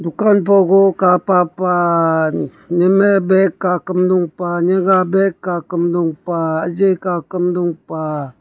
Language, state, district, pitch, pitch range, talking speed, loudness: Nyishi, Arunachal Pradesh, Papum Pare, 180 Hz, 170-190 Hz, 115 wpm, -15 LUFS